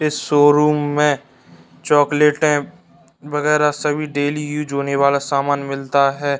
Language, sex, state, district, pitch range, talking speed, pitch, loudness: Hindi, male, Bihar, Darbhanga, 140-150 Hz, 120 wpm, 145 Hz, -17 LUFS